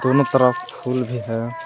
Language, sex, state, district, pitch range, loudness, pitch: Hindi, male, Jharkhand, Palamu, 120-135 Hz, -20 LUFS, 125 Hz